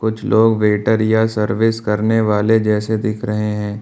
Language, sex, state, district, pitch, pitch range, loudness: Hindi, male, Uttar Pradesh, Lucknow, 110 Hz, 105-110 Hz, -16 LUFS